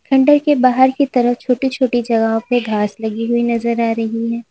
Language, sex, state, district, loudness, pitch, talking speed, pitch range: Hindi, female, Uttar Pradesh, Lalitpur, -16 LUFS, 235 Hz, 215 wpm, 225-260 Hz